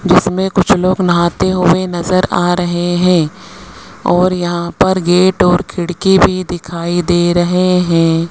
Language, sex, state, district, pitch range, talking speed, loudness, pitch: Hindi, male, Rajasthan, Jaipur, 175-185 Hz, 145 wpm, -13 LUFS, 180 Hz